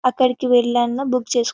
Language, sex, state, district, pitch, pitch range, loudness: Telugu, female, Telangana, Karimnagar, 250 Hz, 240-255 Hz, -18 LUFS